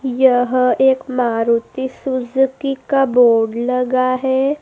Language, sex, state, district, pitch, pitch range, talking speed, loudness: Hindi, female, Madhya Pradesh, Dhar, 255 Hz, 250-265 Hz, 105 wpm, -16 LUFS